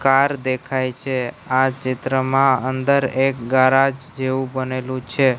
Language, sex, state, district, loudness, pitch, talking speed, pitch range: Gujarati, male, Gujarat, Gandhinagar, -19 LUFS, 130 Hz, 120 wpm, 130-135 Hz